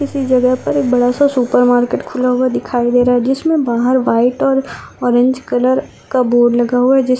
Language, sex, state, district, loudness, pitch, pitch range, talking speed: Hindi, female, Rajasthan, Churu, -14 LUFS, 250 Hz, 245-260 Hz, 215 wpm